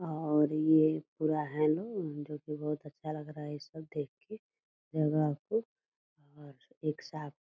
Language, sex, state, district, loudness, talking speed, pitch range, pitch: Hindi, female, Bihar, Purnia, -34 LUFS, 180 wpm, 150-155 Hz, 155 Hz